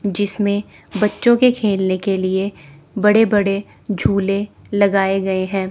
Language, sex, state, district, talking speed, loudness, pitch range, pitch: Hindi, female, Chandigarh, Chandigarh, 125 wpm, -18 LUFS, 195-205 Hz, 200 Hz